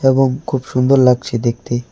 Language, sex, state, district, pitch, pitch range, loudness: Bengali, male, West Bengal, Alipurduar, 130 Hz, 120-135 Hz, -15 LUFS